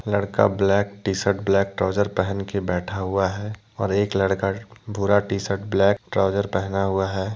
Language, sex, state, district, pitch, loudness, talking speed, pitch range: Hindi, male, Jharkhand, Deoghar, 100 Hz, -22 LUFS, 180 wpm, 95-100 Hz